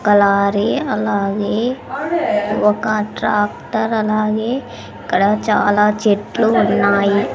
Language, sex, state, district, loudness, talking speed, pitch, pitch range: Telugu, female, Andhra Pradesh, Sri Satya Sai, -16 LUFS, 80 wpm, 215 Hz, 205-225 Hz